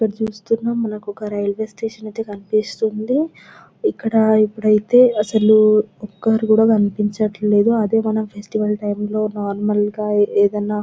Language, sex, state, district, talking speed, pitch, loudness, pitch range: Telugu, female, Telangana, Nalgonda, 125 wpm, 215 Hz, -18 LUFS, 210-220 Hz